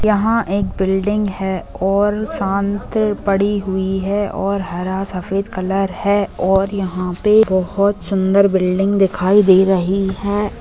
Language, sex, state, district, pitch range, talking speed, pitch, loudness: Hindi, female, Bihar, Bhagalpur, 190-205 Hz, 135 wpm, 195 Hz, -17 LUFS